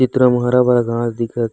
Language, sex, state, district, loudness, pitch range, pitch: Chhattisgarhi, male, Chhattisgarh, Raigarh, -16 LUFS, 115-125 Hz, 120 Hz